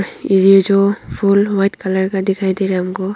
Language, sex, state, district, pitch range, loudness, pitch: Hindi, female, Arunachal Pradesh, Longding, 190-200 Hz, -15 LUFS, 195 Hz